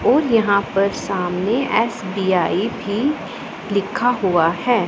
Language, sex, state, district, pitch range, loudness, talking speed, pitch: Hindi, female, Punjab, Pathankot, 190-240 Hz, -19 LUFS, 110 wpm, 205 Hz